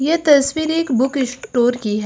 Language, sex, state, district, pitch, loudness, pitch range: Hindi, female, Uttar Pradesh, Lucknow, 270 Hz, -17 LUFS, 245-315 Hz